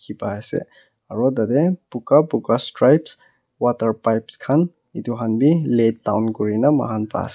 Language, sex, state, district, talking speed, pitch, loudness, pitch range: Nagamese, male, Nagaland, Kohima, 140 wpm, 120 Hz, -20 LUFS, 110-145 Hz